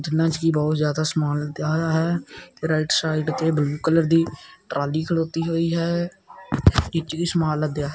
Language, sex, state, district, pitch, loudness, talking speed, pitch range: Punjabi, male, Punjab, Kapurthala, 160 Hz, -22 LUFS, 175 wpm, 155-165 Hz